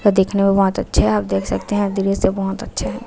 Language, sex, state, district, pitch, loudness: Hindi, female, Chhattisgarh, Raipur, 195 Hz, -18 LUFS